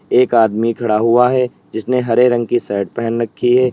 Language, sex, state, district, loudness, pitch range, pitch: Hindi, male, Uttar Pradesh, Lalitpur, -15 LUFS, 115-125 Hz, 120 Hz